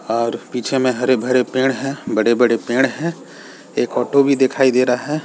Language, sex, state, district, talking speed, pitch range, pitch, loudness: Hindi, male, Uttar Pradesh, Muzaffarnagar, 185 wpm, 125-135 Hz, 130 Hz, -17 LUFS